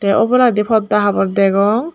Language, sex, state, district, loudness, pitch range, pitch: Chakma, female, Tripura, Dhalai, -14 LUFS, 200-225 Hz, 210 Hz